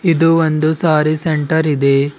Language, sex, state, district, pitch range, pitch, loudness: Kannada, male, Karnataka, Bidar, 150-165 Hz, 155 Hz, -14 LUFS